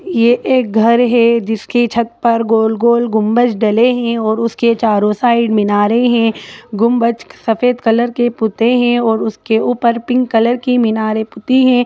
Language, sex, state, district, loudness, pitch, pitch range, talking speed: Hindi, female, Bihar, Lakhisarai, -13 LUFS, 235 Hz, 220-240 Hz, 160 wpm